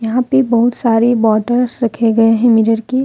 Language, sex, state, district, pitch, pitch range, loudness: Hindi, female, Jharkhand, Deoghar, 235 Hz, 225-245 Hz, -13 LUFS